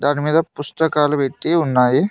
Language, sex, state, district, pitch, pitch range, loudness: Telugu, male, Telangana, Mahabubabad, 145 Hz, 145-160 Hz, -17 LUFS